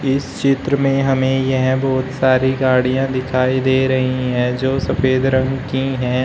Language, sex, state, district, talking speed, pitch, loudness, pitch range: Hindi, male, Uttar Pradesh, Shamli, 165 wpm, 130 Hz, -17 LUFS, 130-135 Hz